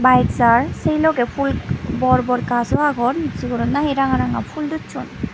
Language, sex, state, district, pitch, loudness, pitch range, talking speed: Chakma, female, Tripura, Unakoti, 265 Hz, -19 LUFS, 250-295 Hz, 170 wpm